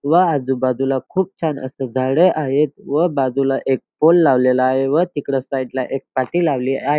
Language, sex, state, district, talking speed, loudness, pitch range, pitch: Marathi, male, Maharashtra, Dhule, 180 wpm, -18 LUFS, 130-155 Hz, 135 Hz